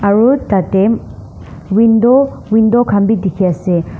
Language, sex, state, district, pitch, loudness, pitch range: Nagamese, female, Nagaland, Dimapur, 200 Hz, -12 LUFS, 180-225 Hz